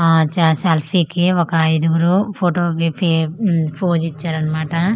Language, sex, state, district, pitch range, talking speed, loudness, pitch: Telugu, female, Andhra Pradesh, Manyam, 160-175 Hz, 145 wpm, -17 LUFS, 165 Hz